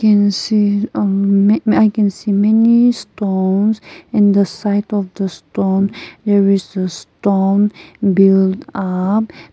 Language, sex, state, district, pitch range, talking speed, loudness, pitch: English, female, Nagaland, Kohima, 195-210 Hz, 120 wpm, -15 LUFS, 200 Hz